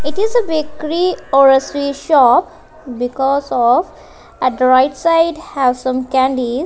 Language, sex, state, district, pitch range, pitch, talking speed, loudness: English, female, Punjab, Kapurthala, 255-315 Hz, 275 Hz, 155 wpm, -14 LUFS